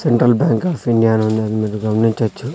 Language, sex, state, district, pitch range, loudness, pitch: Telugu, male, Andhra Pradesh, Sri Satya Sai, 110-120 Hz, -16 LUFS, 115 Hz